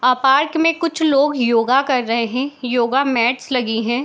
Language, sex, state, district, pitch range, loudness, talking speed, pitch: Hindi, female, Bihar, Gopalganj, 240-280 Hz, -17 LUFS, 190 wpm, 255 Hz